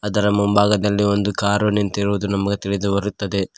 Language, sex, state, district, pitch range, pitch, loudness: Kannada, male, Karnataka, Koppal, 100-105 Hz, 100 Hz, -19 LUFS